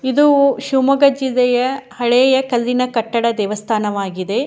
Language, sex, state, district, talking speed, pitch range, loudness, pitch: Kannada, female, Karnataka, Shimoga, 105 wpm, 230-265 Hz, -16 LUFS, 250 Hz